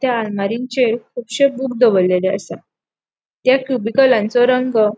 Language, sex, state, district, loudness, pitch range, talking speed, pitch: Konkani, female, Goa, North and South Goa, -16 LUFS, 210-255 Hz, 110 wpm, 240 Hz